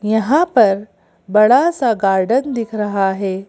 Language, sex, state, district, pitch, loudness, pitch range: Hindi, female, Madhya Pradesh, Bhopal, 215 Hz, -15 LUFS, 195-245 Hz